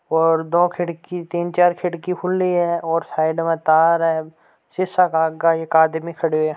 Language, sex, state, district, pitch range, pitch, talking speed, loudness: Hindi, male, Rajasthan, Churu, 160-175 Hz, 165 Hz, 175 wpm, -19 LUFS